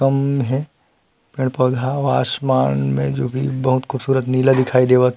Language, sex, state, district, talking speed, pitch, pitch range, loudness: Chhattisgarhi, male, Chhattisgarh, Rajnandgaon, 175 wpm, 130 Hz, 125-135 Hz, -18 LUFS